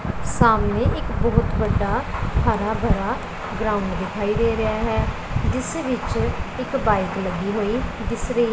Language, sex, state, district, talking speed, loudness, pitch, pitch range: Punjabi, female, Punjab, Pathankot, 135 wpm, -22 LUFS, 215 Hz, 200-225 Hz